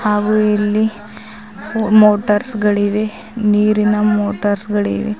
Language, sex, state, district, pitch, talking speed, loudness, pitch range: Kannada, female, Karnataka, Bidar, 210 Hz, 80 wpm, -15 LUFS, 205-215 Hz